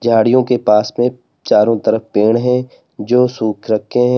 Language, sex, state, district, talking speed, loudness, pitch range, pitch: Hindi, male, Uttar Pradesh, Lalitpur, 175 wpm, -14 LUFS, 110-125 Hz, 120 Hz